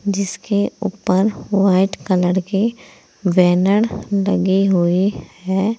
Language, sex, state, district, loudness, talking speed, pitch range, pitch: Hindi, female, Uttar Pradesh, Saharanpur, -17 LUFS, 95 wpm, 185-205 Hz, 195 Hz